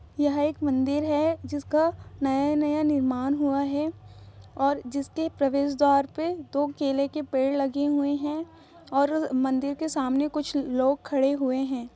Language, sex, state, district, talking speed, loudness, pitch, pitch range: Hindi, female, Bihar, East Champaran, 160 wpm, -26 LUFS, 285 Hz, 270-295 Hz